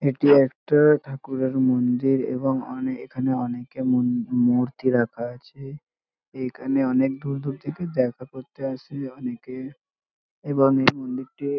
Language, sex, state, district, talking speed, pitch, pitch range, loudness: Bengali, male, West Bengal, North 24 Parganas, 125 wpm, 130 Hz, 125-140 Hz, -23 LUFS